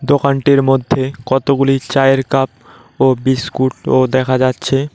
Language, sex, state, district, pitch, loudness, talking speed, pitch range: Bengali, male, West Bengal, Cooch Behar, 135 Hz, -14 LUFS, 120 wpm, 130-135 Hz